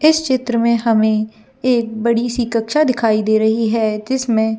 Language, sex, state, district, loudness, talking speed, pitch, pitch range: Hindi, female, Chhattisgarh, Bilaspur, -16 LUFS, 185 wpm, 230 Hz, 220-245 Hz